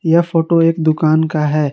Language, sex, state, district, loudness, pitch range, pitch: Hindi, male, Jharkhand, Garhwa, -14 LUFS, 155-165 Hz, 160 Hz